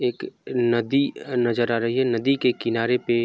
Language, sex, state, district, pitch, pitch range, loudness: Hindi, male, Jharkhand, Sahebganj, 125 Hz, 120-135 Hz, -23 LUFS